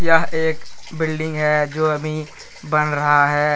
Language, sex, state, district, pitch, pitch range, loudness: Hindi, male, Jharkhand, Deoghar, 155 Hz, 150-160 Hz, -19 LUFS